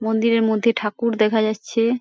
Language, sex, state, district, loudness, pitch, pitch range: Bengali, female, West Bengal, Paschim Medinipur, -20 LUFS, 225 Hz, 215-230 Hz